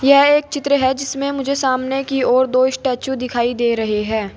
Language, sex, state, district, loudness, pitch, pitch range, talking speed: Hindi, female, Uttar Pradesh, Saharanpur, -17 LUFS, 260 Hz, 245-275 Hz, 205 wpm